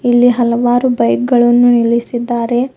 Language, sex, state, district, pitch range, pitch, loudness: Kannada, female, Karnataka, Bidar, 235-245 Hz, 240 Hz, -12 LUFS